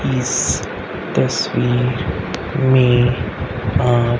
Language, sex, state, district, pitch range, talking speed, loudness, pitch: Hindi, male, Haryana, Rohtak, 105-125 Hz, 55 wpm, -18 LUFS, 120 Hz